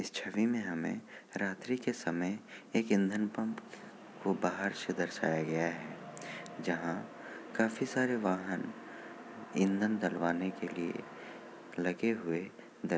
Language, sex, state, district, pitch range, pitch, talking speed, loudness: Hindi, male, Bihar, Kishanganj, 90-115 Hz, 95 Hz, 120 wpm, -35 LUFS